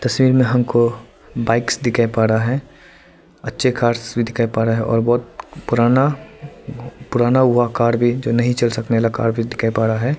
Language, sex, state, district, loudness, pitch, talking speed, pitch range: Hindi, male, Arunachal Pradesh, Lower Dibang Valley, -17 LUFS, 120 Hz, 195 wpm, 115-130 Hz